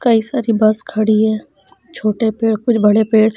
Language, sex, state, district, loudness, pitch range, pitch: Hindi, female, Bihar, Kaimur, -15 LUFS, 215-225 Hz, 220 Hz